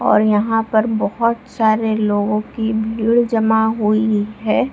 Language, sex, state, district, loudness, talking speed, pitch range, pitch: Hindi, female, Bihar, Supaul, -17 LUFS, 140 wpm, 215-225 Hz, 220 Hz